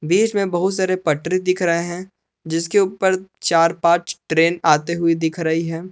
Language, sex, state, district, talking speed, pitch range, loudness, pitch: Hindi, male, Jharkhand, Palamu, 180 wpm, 165-185 Hz, -19 LUFS, 170 Hz